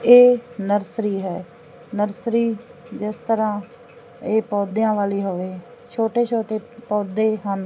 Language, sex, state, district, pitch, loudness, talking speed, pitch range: Punjabi, female, Punjab, Fazilka, 215 Hz, -21 LUFS, 110 wpm, 200-235 Hz